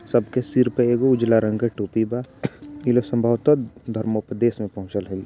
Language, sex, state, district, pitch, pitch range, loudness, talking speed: Bhojpuri, male, Bihar, Gopalganj, 120 Hz, 110-125 Hz, -22 LUFS, 195 wpm